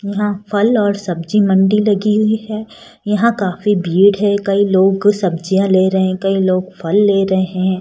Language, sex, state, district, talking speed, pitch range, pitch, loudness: Hindi, female, Rajasthan, Jaipur, 185 wpm, 190-210 Hz, 200 Hz, -14 LUFS